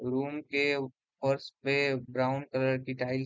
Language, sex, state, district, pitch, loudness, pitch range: Hindi, male, Bihar, Gopalganj, 130 Hz, -31 LUFS, 130-140 Hz